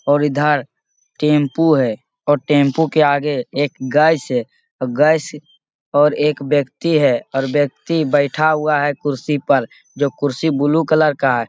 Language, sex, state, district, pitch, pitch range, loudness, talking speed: Hindi, male, Bihar, Jamui, 145 Hz, 140-150 Hz, -17 LUFS, 140 wpm